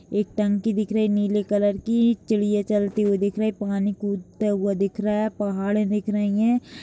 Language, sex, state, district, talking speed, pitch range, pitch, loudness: Hindi, female, Chhattisgarh, Kabirdham, 200 wpm, 205-215 Hz, 210 Hz, -23 LUFS